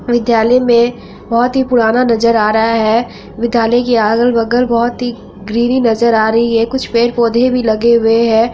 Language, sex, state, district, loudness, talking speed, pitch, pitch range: Hindi, female, Bihar, Araria, -12 LUFS, 175 wpm, 235 Hz, 225-240 Hz